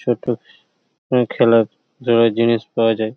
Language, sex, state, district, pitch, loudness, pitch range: Bengali, male, West Bengal, Paschim Medinipur, 115 Hz, -18 LUFS, 115-120 Hz